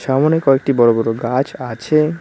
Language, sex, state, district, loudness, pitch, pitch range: Bengali, male, West Bengal, Cooch Behar, -16 LUFS, 135 Hz, 120-150 Hz